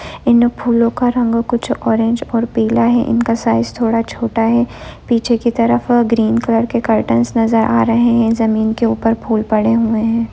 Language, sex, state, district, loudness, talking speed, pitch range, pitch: Hindi, female, West Bengal, Kolkata, -15 LUFS, 190 wpm, 225-235 Hz, 230 Hz